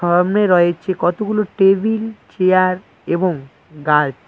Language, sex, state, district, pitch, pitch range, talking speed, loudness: Bengali, male, West Bengal, Cooch Behar, 185 Hz, 170-200 Hz, 100 wpm, -16 LUFS